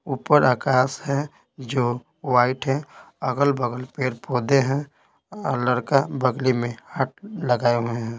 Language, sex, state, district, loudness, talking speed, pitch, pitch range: Hindi, male, Bihar, Patna, -23 LUFS, 130 wpm, 130 Hz, 125-140 Hz